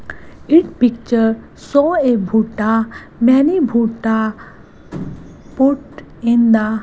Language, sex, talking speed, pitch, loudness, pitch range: English, female, 80 wpm, 235 Hz, -15 LUFS, 225-275 Hz